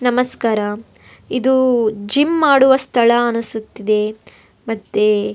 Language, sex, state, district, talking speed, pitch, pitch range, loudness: Kannada, female, Karnataka, Bellary, 90 wpm, 230 Hz, 215-260 Hz, -16 LUFS